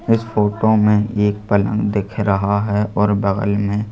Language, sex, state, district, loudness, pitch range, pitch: Hindi, male, Madhya Pradesh, Bhopal, -17 LUFS, 100-105 Hz, 105 Hz